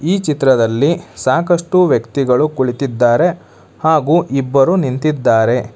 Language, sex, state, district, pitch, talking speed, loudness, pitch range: Kannada, male, Karnataka, Bangalore, 135 Hz, 85 wpm, -14 LUFS, 125-160 Hz